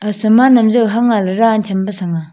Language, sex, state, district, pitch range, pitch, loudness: Wancho, female, Arunachal Pradesh, Longding, 195-230 Hz, 215 Hz, -13 LUFS